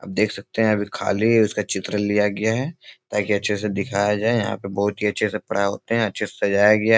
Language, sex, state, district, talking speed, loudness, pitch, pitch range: Hindi, male, Bihar, Supaul, 265 wpm, -22 LUFS, 105 Hz, 100-110 Hz